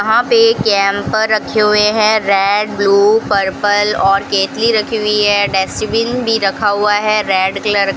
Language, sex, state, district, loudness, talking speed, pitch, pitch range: Hindi, female, Rajasthan, Bikaner, -13 LUFS, 175 wpm, 210 Hz, 200-220 Hz